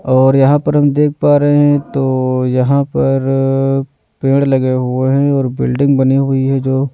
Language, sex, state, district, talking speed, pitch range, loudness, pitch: Hindi, male, Delhi, New Delhi, 180 wpm, 130-140 Hz, -13 LUFS, 135 Hz